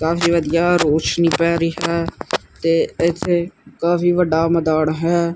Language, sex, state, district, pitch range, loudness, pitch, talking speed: Punjabi, male, Punjab, Kapurthala, 165-170 Hz, -18 LUFS, 170 Hz, 135 wpm